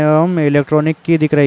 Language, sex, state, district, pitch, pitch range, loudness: Hindi, male, Uttar Pradesh, Jalaun, 155 Hz, 150-160 Hz, -14 LUFS